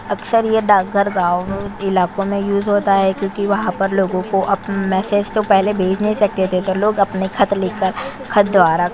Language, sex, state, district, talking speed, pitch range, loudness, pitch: Hindi, female, Chhattisgarh, Korba, 200 wpm, 190-205 Hz, -17 LUFS, 195 Hz